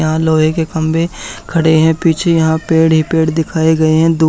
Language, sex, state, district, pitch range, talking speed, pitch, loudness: Hindi, male, Haryana, Charkhi Dadri, 160-165 Hz, 210 wpm, 160 Hz, -13 LUFS